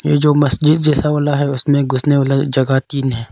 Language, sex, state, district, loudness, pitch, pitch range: Hindi, male, Arunachal Pradesh, Longding, -15 LUFS, 145 Hz, 135-150 Hz